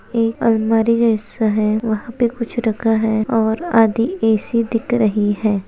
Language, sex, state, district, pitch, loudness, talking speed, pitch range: Hindi, female, Chhattisgarh, Bilaspur, 225 Hz, -17 LUFS, 160 wpm, 215-230 Hz